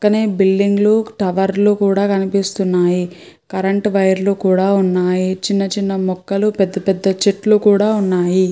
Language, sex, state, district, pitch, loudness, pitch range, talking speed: Telugu, female, Andhra Pradesh, Chittoor, 195 Hz, -15 LUFS, 190-200 Hz, 120 wpm